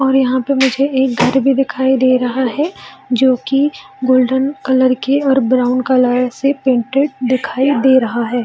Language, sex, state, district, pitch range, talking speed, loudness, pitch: Hindi, female, Bihar, Jamui, 255-270 Hz, 175 wpm, -14 LUFS, 260 Hz